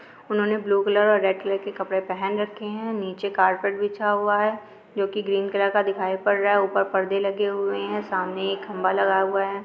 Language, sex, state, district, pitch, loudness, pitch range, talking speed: Hindi, female, Andhra Pradesh, Krishna, 200 Hz, -23 LUFS, 195-205 Hz, 205 wpm